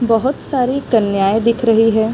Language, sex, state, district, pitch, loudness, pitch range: Hindi, female, Bihar, East Champaran, 225 Hz, -15 LUFS, 220-250 Hz